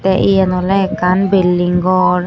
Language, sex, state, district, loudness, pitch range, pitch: Chakma, female, Tripura, West Tripura, -13 LUFS, 180-195 Hz, 185 Hz